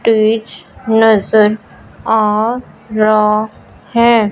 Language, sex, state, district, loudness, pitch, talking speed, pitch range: Hindi, male, Punjab, Fazilka, -13 LUFS, 220 Hz, 70 wpm, 215-225 Hz